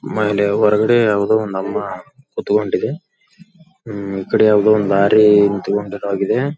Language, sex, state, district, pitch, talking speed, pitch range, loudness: Kannada, male, Karnataka, Belgaum, 105 Hz, 110 wpm, 100-125 Hz, -16 LUFS